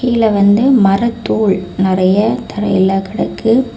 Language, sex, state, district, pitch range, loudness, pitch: Tamil, female, Tamil Nadu, Kanyakumari, 195-235 Hz, -13 LUFS, 210 Hz